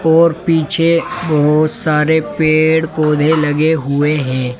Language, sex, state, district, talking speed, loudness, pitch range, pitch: Hindi, male, Uttar Pradesh, Saharanpur, 115 wpm, -13 LUFS, 150-160 Hz, 155 Hz